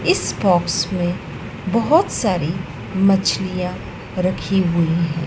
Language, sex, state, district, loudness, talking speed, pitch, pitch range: Hindi, female, Madhya Pradesh, Dhar, -19 LUFS, 100 wpm, 180 Hz, 170-190 Hz